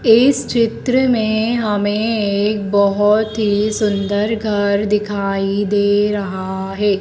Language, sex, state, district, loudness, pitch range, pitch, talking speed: Hindi, female, Madhya Pradesh, Dhar, -16 LUFS, 200-220 Hz, 205 Hz, 110 wpm